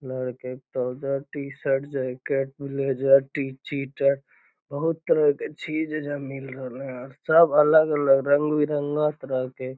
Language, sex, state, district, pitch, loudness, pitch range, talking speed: Magahi, male, Bihar, Lakhisarai, 140 Hz, -24 LUFS, 135-150 Hz, 130 wpm